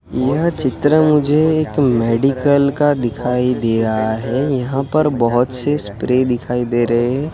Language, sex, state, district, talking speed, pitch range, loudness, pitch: Hindi, male, Gujarat, Gandhinagar, 145 wpm, 120-145 Hz, -16 LUFS, 130 Hz